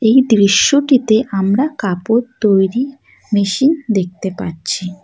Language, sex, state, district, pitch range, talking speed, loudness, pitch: Bengali, female, West Bengal, Alipurduar, 190-255 Hz, 95 wpm, -15 LUFS, 215 Hz